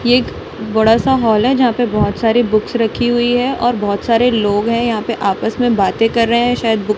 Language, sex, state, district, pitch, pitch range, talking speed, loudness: Hindi, female, Chhattisgarh, Raipur, 230 Hz, 215-245 Hz, 260 wpm, -14 LUFS